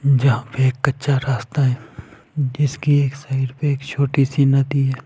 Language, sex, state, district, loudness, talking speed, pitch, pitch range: Hindi, male, Punjab, Fazilka, -19 LUFS, 190 wpm, 135 Hz, 130-140 Hz